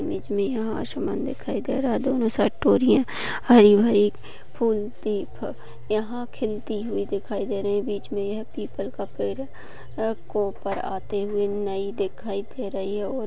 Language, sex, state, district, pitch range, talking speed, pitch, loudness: Hindi, female, Maharashtra, Dhule, 200-220 Hz, 155 wpm, 205 Hz, -25 LUFS